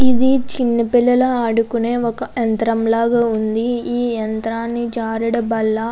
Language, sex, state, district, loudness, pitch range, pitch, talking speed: Telugu, female, Andhra Pradesh, Anantapur, -18 LUFS, 225-245 Hz, 235 Hz, 130 wpm